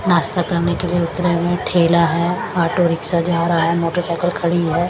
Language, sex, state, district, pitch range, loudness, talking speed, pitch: Hindi, female, Punjab, Kapurthala, 170-175 Hz, -17 LUFS, 210 wpm, 170 Hz